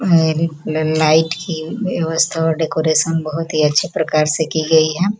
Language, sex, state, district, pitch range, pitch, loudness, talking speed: Hindi, female, Bihar, Gopalganj, 155-165 Hz, 160 Hz, -17 LUFS, 150 wpm